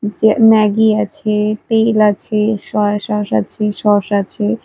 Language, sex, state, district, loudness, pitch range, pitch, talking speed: Bengali, female, Odisha, Malkangiri, -14 LUFS, 210-215 Hz, 210 Hz, 130 wpm